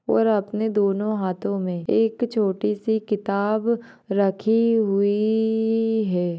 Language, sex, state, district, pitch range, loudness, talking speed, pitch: Hindi, female, Maharashtra, Nagpur, 200-225 Hz, -22 LUFS, 105 wpm, 215 Hz